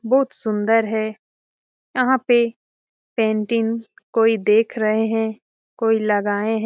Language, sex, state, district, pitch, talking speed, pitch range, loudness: Hindi, female, Bihar, Jamui, 225 Hz, 115 wpm, 215-230 Hz, -20 LUFS